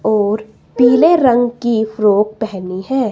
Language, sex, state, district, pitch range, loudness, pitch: Hindi, female, Himachal Pradesh, Shimla, 210-245 Hz, -14 LUFS, 220 Hz